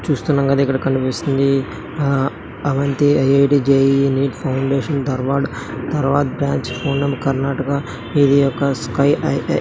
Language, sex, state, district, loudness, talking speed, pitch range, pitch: Telugu, male, Karnataka, Dharwad, -18 LUFS, 105 wpm, 135-140 Hz, 140 Hz